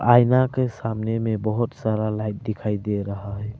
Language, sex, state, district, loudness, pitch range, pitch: Hindi, male, Arunachal Pradesh, Lower Dibang Valley, -23 LUFS, 105-120 Hz, 110 Hz